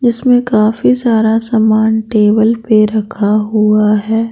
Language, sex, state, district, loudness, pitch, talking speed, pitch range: Hindi, female, Bihar, Patna, -11 LUFS, 220 Hz, 140 wpm, 215-230 Hz